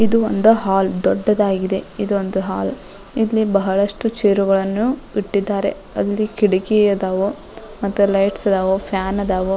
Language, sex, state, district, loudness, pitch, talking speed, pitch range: Kannada, female, Karnataka, Dharwad, -18 LUFS, 200 Hz, 105 wpm, 195-210 Hz